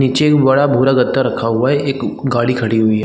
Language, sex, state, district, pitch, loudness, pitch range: Hindi, male, Chhattisgarh, Rajnandgaon, 130 Hz, -14 LUFS, 120-140 Hz